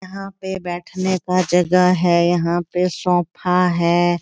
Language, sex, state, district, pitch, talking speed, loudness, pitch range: Hindi, female, Bihar, Supaul, 180 Hz, 140 wpm, -18 LUFS, 175-185 Hz